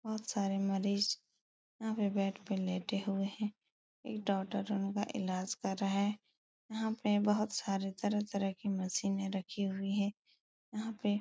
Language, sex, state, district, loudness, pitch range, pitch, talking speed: Hindi, female, Uttar Pradesh, Etah, -36 LUFS, 195-210 Hz, 200 Hz, 160 wpm